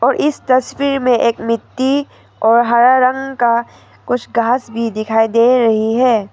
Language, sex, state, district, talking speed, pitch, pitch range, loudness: Hindi, female, Arunachal Pradesh, Papum Pare, 150 wpm, 240 Hz, 230-255 Hz, -14 LUFS